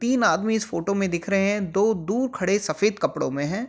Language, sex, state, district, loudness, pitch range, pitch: Hindi, male, Uttar Pradesh, Jyotiba Phule Nagar, -23 LUFS, 190-220 Hz, 200 Hz